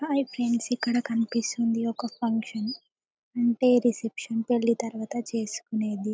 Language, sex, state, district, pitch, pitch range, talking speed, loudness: Telugu, female, Telangana, Karimnagar, 235 Hz, 225-240 Hz, 105 wpm, -27 LUFS